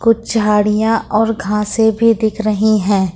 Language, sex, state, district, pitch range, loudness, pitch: Hindi, female, Jharkhand, Ranchi, 210-225 Hz, -14 LUFS, 215 Hz